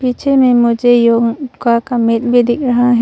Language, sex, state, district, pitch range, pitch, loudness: Hindi, female, Arunachal Pradesh, Longding, 235-250 Hz, 245 Hz, -12 LUFS